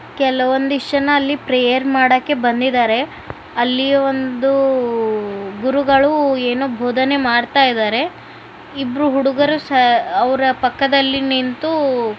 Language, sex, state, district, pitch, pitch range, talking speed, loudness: Kannada, male, Karnataka, Bijapur, 265 Hz, 250-280 Hz, 85 wpm, -16 LUFS